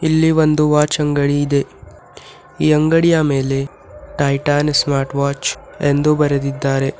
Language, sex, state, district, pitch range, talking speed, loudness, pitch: Kannada, female, Karnataka, Bidar, 140-150 Hz, 110 wpm, -16 LUFS, 145 Hz